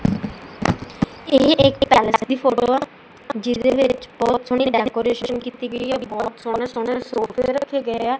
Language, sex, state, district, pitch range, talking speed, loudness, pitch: Punjabi, female, Punjab, Kapurthala, 235-265 Hz, 110 wpm, -20 LUFS, 250 Hz